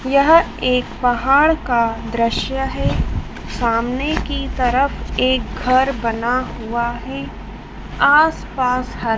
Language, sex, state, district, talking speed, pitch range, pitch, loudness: Hindi, female, Madhya Pradesh, Dhar, 110 wpm, 235-275 Hz, 255 Hz, -18 LUFS